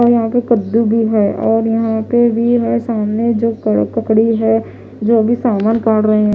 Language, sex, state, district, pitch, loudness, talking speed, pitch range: Hindi, female, Odisha, Khordha, 225 Hz, -14 LUFS, 200 wpm, 220-235 Hz